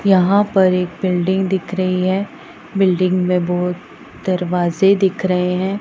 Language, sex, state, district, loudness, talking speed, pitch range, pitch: Hindi, female, Punjab, Pathankot, -17 LUFS, 145 wpm, 180-190 Hz, 185 Hz